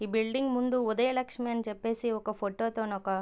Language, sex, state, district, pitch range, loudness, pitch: Telugu, female, Andhra Pradesh, Visakhapatnam, 215-245 Hz, -31 LUFS, 230 Hz